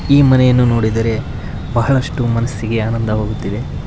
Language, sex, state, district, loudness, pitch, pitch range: Kannada, male, Karnataka, Koppal, -15 LUFS, 115 Hz, 110-125 Hz